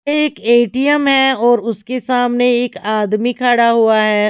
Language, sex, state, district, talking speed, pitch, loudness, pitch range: Hindi, female, Himachal Pradesh, Shimla, 140 wpm, 240 Hz, -14 LUFS, 225-255 Hz